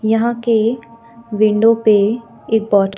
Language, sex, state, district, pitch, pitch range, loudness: Hindi, female, Jharkhand, Deoghar, 225 Hz, 215-230 Hz, -15 LUFS